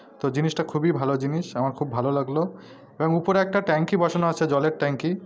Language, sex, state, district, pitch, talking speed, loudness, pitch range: Bengali, male, West Bengal, North 24 Parganas, 155 Hz, 195 wpm, -24 LUFS, 140-170 Hz